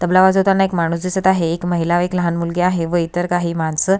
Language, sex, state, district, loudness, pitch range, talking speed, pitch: Marathi, female, Maharashtra, Solapur, -17 LUFS, 170-185 Hz, 255 wpm, 175 Hz